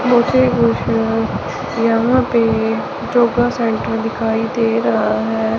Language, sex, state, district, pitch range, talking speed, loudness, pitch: Hindi, male, Chandigarh, Chandigarh, 225-240 Hz, 105 wpm, -16 LUFS, 230 Hz